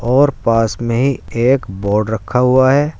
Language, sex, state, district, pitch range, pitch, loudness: Hindi, male, Uttar Pradesh, Saharanpur, 110-130 Hz, 120 Hz, -15 LUFS